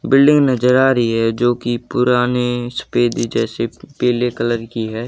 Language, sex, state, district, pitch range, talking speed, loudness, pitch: Hindi, male, Haryana, Jhajjar, 115-125 Hz, 155 wpm, -17 LUFS, 120 Hz